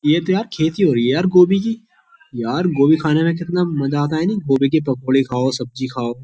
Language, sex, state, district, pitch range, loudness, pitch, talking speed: Hindi, male, Uttar Pradesh, Jyotiba Phule Nagar, 135-180 Hz, -17 LUFS, 155 Hz, 240 wpm